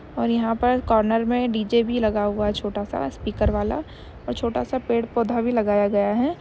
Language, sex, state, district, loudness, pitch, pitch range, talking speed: Hindi, female, Bihar, Madhepura, -23 LUFS, 230 Hz, 210-240 Hz, 205 wpm